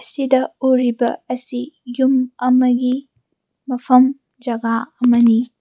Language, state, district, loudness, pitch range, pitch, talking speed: Manipuri, Manipur, Imphal West, -17 LUFS, 245-265 Hz, 250 Hz, 85 wpm